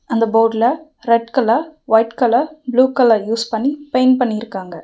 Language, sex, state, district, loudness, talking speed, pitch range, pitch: Tamil, female, Tamil Nadu, Nilgiris, -16 LUFS, 150 wpm, 225-260 Hz, 235 Hz